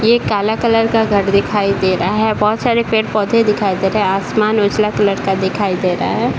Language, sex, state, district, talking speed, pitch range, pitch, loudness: Hindi, male, Bihar, Jahanabad, 235 wpm, 195-220 Hz, 210 Hz, -15 LUFS